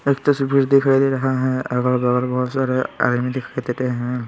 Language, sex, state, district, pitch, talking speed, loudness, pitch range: Hindi, male, Bihar, Patna, 130 Hz, 210 wpm, -19 LUFS, 125-135 Hz